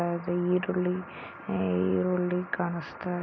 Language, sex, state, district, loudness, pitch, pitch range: Kannada, female, Karnataka, Chamarajanagar, -29 LUFS, 175 Hz, 170-180 Hz